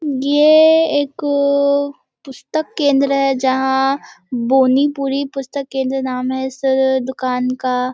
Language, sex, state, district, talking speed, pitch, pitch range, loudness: Hindi, female, Bihar, Muzaffarpur, 105 wpm, 270 Hz, 260-285 Hz, -16 LUFS